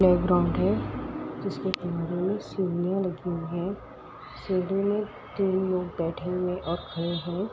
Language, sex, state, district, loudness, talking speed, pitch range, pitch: Hindi, female, Uttar Pradesh, Etah, -28 LUFS, 160 wpm, 175-190 Hz, 180 Hz